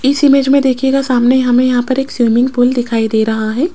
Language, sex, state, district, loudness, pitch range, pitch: Hindi, female, Rajasthan, Jaipur, -12 LUFS, 240-270 Hz, 255 Hz